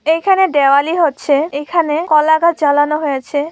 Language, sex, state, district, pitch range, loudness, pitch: Bengali, female, West Bengal, Purulia, 285-330 Hz, -14 LUFS, 305 Hz